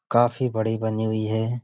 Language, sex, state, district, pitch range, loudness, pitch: Hindi, male, Uttar Pradesh, Budaun, 110-120 Hz, -24 LUFS, 110 Hz